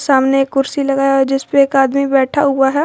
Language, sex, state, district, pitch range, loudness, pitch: Hindi, female, Jharkhand, Garhwa, 270-275 Hz, -14 LUFS, 275 Hz